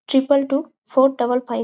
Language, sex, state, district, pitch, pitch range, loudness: Bengali, female, West Bengal, Jalpaiguri, 270 Hz, 250-275 Hz, -19 LUFS